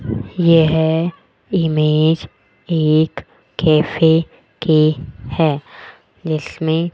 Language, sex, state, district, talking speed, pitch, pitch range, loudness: Hindi, female, Rajasthan, Jaipur, 60 wpm, 160 Hz, 155-165 Hz, -16 LUFS